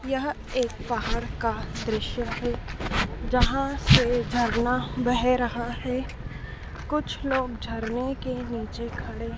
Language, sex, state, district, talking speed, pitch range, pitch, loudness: Hindi, female, Madhya Pradesh, Dhar, 115 wpm, 235-260 Hz, 245 Hz, -27 LUFS